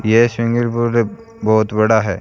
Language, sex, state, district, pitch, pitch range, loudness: Hindi, male, Rajasthan, Bikaner, 115 Hz, 110-120 Hz, -16 LUFS